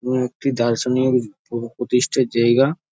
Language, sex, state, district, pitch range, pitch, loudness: Bengali, male, West Bengal, Jhargram, 120-130 Hz, 125 Hz, -20 LUFS